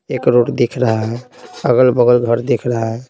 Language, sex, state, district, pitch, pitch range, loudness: Hindi, male, Bihar, Patna, 120 Hz, 115-125 Hz, -15 LUFS